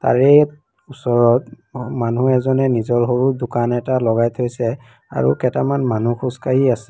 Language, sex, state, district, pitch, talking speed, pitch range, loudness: Assamese, female, Assam, Kamrup Metropolitan, 125 Hz, 130 wpm, 120-130 Hz, -17 LUFS